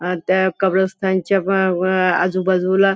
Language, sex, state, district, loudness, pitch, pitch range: Marathi, female, Maharashtra, Nagpur, -17 LUFS, 190 Hz, 185-190 Hz